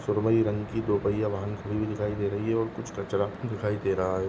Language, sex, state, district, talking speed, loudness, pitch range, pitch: Hindi, male, Goa, North and South Goa, 250 wpm, -29 LUFS, 100-110 Hz, 105 Hz